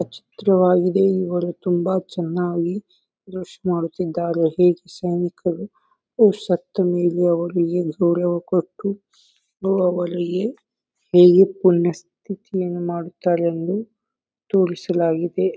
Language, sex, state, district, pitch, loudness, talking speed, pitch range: Kannada, male, Karnataka, Bijapur, 180 Hz, -20 LUFS, 60 wpm, 175-190 Hz